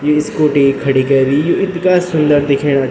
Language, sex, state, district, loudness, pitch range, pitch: Garhwali, male, Uttarakhand, Tehri Garhwal, -13 LUFS, 140-155 Hz, 145 Hz